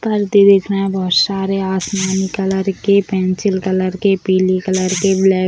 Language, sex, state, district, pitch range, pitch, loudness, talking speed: Hindi, female, Bihar, Sitamarhi, 185-195 Hz, 190 Hz, -15 LUFS, 185 wpm